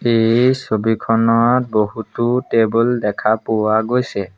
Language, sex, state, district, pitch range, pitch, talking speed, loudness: Assamese, male, Assam, Sonitpur, 110-120 Hz, 115 Hz, 95 wpm, -16 LUFS